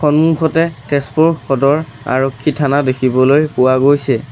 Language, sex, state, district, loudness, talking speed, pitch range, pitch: Assamese, male, Assam, Sonitpur, -14 LUFS, 110 wpm, 130-155 Hz, 140 Hz